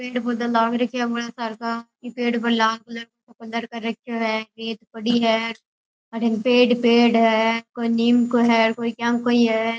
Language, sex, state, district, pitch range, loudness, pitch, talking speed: Rajasthani, female, Rajasthan, Churu, 230-235 Hz, -21 LUFS, 230 Hz, 200 wpm